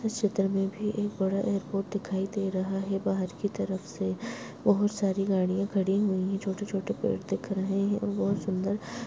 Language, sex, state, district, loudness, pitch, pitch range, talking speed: Hindi, female, Uttarakhand, Tehri Garhwal, -30 LUFS, 195 Hz, 190-205 Hz, 205 wpm